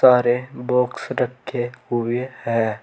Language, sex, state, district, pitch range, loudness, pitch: Hindi, male, Uttar Pradesh, Saharanpur, 120-125 Hz, -22 LUFS, 125 Hz